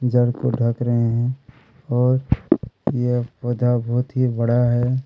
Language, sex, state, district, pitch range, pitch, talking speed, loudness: Hindi, male, Chhattisgarh, Kabirdham, 120-125 Hz, 125 Hz, 140 wpm, -21 LUFS